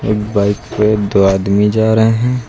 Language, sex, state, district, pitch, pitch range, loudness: Hindi, male, Uttar Pradesh, Lucknow, 105 Hz, 100-110 Hz, -13 LUFS